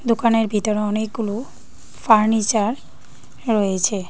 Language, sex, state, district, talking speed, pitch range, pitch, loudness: Bengali, female, Tripura, Dhalai, 75 wpm, 210-225 Hz, 220 Hz, -19 LUFS